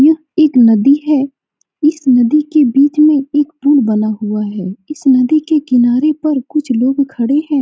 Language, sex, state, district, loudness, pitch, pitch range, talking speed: Hindi, female, Bihar, Saran, -12 LUFS, 280 Hz, 250-300 Hz, 190 wpm